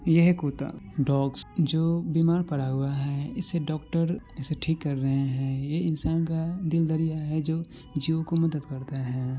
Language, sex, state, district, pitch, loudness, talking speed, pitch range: Maithili, male, Bihar, Supaul, 155 Hz, -27 LUFS, 180 wpm, 140-165 Hz